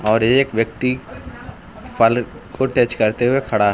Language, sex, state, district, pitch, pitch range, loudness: Hindi, male, Uttar Pradesh, Lucknow, 120 Hz, 110-125 Hz, -18 LUFS